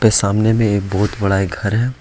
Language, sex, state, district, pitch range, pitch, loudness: Hindi, male, Jharkhand, Ranchi, 100-110 Hz, 105 Hz, -17 LUFS